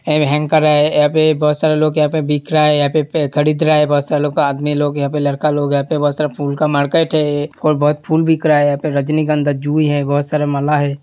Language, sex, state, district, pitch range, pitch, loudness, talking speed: Hindi, male, Uttar Pradesh, Hamirpur, 145-155 Hz, 150 Hz, -15 LUFS, 285 wpm